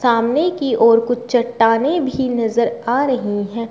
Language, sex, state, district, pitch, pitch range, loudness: Hindi, female, Uttar Pradesh, Shamli, 240 Hz, 230-260 Hz, -17 LUFS